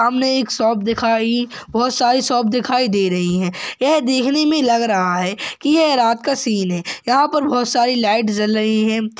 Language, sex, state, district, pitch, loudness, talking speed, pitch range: Hindi, male, Maharashtra, Solapur, 235 Hz, -17 LUFS, 200 wpm, 215-255 Hz